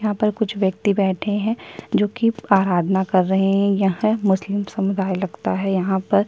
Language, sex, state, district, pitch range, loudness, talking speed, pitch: Hindi, female, Chhattisgarh, Kabirdham, 190-210 Hz, -20 LUFS, 190 wpm, 195 Hz